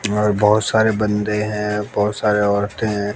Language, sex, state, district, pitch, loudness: Hindi, male, Bihar, West Champaran, 105 Hz, -18 LUFS